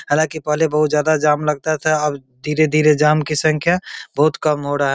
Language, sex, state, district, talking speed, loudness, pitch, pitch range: Hindi, male, Bihar, Begusarai, 205 wpm, -17 LUFS, 150 Hz, 150-155 Hz